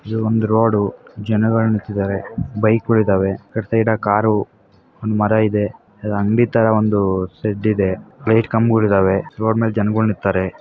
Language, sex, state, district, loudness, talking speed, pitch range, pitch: Kannada, female, Karnataka, Chamarajanagar, -18 LUFS, 140 wpm, 100-110 Hz, 110 Hz